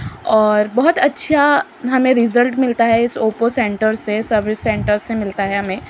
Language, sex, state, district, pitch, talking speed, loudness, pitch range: Hindi, female, Uttar Pradesh, Muzaffarnagar, 225 Hz, 175 wpm, -16 LUFS, 215-250 Hz